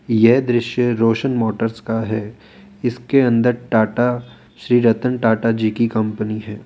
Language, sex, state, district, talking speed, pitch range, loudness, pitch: Hindi, male, Rajasthan, Jaipur, 145 wpm, 110-125 Hz, -18 LUFS, 115 Hz